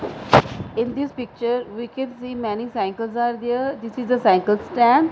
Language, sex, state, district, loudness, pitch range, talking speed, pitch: English, female, Punjab, Fazilka, -22 LUFS, 230-250 Hz, 175 wpm, 240 Hz